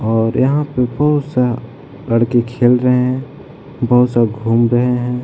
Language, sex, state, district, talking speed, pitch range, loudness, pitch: Hindi, male, Bihar, Jahanabad, 160 wpm, 120-130 Hz, -15 LUFS, 125 Hz